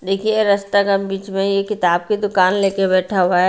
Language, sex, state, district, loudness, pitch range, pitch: Hindi, female, Bihar, Patna, -17 LUFS, 185-200 Hz, 195 Hz